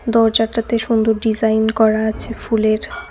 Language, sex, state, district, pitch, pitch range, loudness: Bengali, female, West Bengal, Cooch Behar, 225 Hz, 220-230 Hz, -17 LUFS